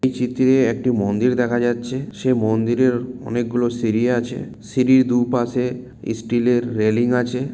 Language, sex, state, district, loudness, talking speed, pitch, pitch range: Bengali, male, West Bengal, Malda, -19 LUFS, 125 wpm, 125 Hz, 120-125 Hz